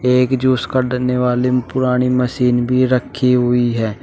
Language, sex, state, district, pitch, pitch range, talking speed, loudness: Hindi, male, Uttar Pradesh, Shamli, 125 Hz, 125-130 Hz, 150 wpm, -16 LUFS